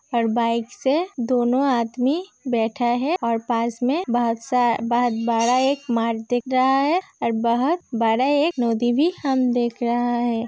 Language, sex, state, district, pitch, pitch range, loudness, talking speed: Hindi, female, Uttar Pradesh, Hamirpur, 245 Hz, 235-270 Hz, -21 LUFS, 165 wpm